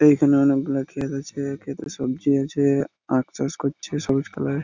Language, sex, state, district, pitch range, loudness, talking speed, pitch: Bengali, male, West Bengal, Purulia, 135-145 Hz, -23 LUFS, 170 wpm, 140 Hz